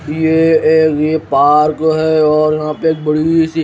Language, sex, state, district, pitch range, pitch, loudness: Hindi, male, Himachal Pradesh, Shimla, 155-160 Hz, 155 Hz, -12 LUFS